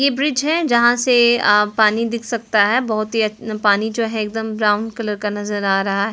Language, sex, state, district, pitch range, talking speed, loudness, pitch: Hindi, female, Chhattisgarh, Jashpur, 210-235 Hz, 215 wpm, -17 LUFS, 220 Hz